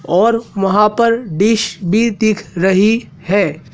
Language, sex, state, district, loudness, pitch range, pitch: Hindi, male, Madhya Pradesh, Dhar, -14 LUFS, 190-225 Hz, 210 Hz